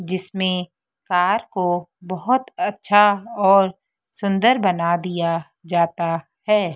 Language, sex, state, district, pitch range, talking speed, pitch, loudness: Hindi, female, Madhya Pradesh, Dhar, 175-200 Hz, 100 wpm, 185 Hz, -20 LUFS